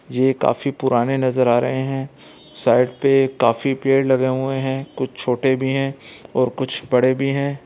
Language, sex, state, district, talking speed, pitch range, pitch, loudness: Hindi, male, Bihar, Gaya, 180 wpm, 130-135 Hz, 130 Hz, -19 LUFS